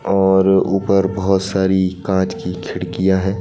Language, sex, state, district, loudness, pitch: Hindi, male, Madhya Pradesh, Bhopal, -17 LUFS, 95 Hz